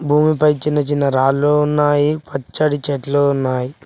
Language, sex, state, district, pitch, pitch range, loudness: Telugu, male, Telangana, Mahabubabad, 145 Hz, 140-150 Hz, -16 LUFS